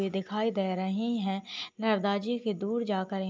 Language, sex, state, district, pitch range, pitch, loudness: Hindi, female, Uttar Pradesh, Ghazipur, 195-225 Hz, 205 Hz, -31 LUFS